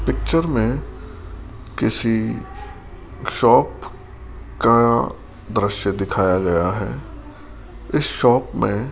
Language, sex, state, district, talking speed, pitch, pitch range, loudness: Hindi, male, Rajasthan, Jaipur, 85 wpm, 100 Hz, 90-115 Hz, -19 LUFS